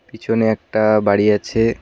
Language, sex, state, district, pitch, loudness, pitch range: Bengali, male, West Bengal, Cooch Behar, 110 Hz, -17 LUFS, 105-115 Hz